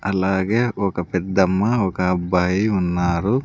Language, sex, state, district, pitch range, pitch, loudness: Telugu, male, Andhra Pradesh, Sri Satya Sai, 90-100 Hz, 95 Hz, -20 LUFS